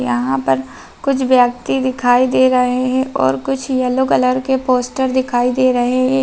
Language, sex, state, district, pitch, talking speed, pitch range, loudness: Hindi, female, Bihar, Araria, 255 Hz, 175 wpm, 245-260 Hz, -15 LUFS